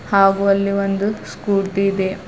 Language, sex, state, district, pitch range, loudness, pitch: Kannada, female, Karnataka, Bidar, 195-200 Hz, -18 LUFS, 195 Hz